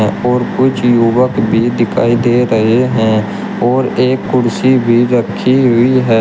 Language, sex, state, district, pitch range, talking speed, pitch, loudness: Hindi, male, Uttar Pradesh, Shamli, 115-125 Hz, 145 wpm, 120 Hz, -12 LUFS